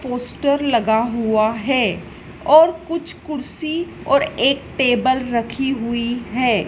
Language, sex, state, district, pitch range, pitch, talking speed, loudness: Hindi, female, Madhya Pradesh, Dhar, 235-285 Hz, 255 Hz, 115 wpm, -18 LUFS